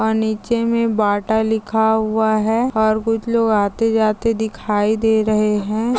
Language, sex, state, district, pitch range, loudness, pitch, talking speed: Hindi, male, Maharashtra, Aurangabad, 215-225 Hz, -18 LUFS, 220 Hz, 160 wpm